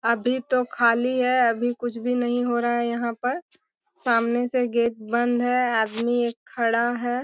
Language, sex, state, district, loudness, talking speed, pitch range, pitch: Hindi, female, Bihar, Bhagalpur, -23 LUFS, 175 wpm, 235-245 Hz, 240 Hz